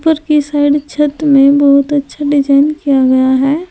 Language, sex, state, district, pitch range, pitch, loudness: Hindi, female, Uttar Pradesh, Saharanpur, 280-295 Hz, 285 Hz, -11 LUFS